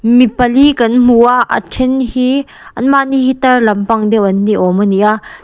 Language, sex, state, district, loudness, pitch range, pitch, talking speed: Mizo, female, Mizoram, Aizawl, -11 LUFS, 215-260 Hz, 245 Hz, 220 wpm